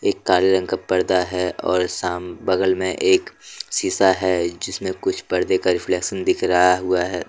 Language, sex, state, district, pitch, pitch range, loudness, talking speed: Hindi, male, Jharkhand, Deoghar, 90 Hz, 90-95 Hz, -20 LUFS, 165 wpm